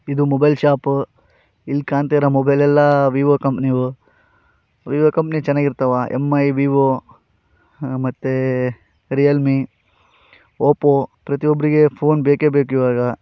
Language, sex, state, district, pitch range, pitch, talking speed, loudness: Kannada, male, Karnataka, Raichur, 130-145 Hz, 140 Hz, 110 wpm, -17 LUFS